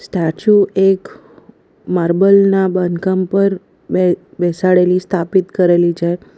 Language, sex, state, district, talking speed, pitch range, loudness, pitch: Gujarati, female, Gujarat, Valsad, 105 wpm, 175-195 Hz, -14 LUFS, 185 Hz